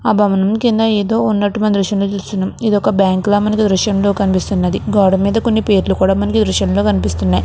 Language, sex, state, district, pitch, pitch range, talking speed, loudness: Telugu, female, Andhra Pradesh, Krishna, 200 Hz, 190-215 Hz, 200 wpm, -14 LUFS